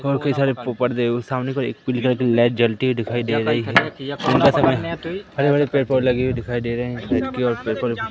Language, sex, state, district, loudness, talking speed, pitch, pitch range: Hindi, male, Madhya Pradesh, Katni, -20 LUFS, 260 wpm, 125 Hz, 120-135 Hz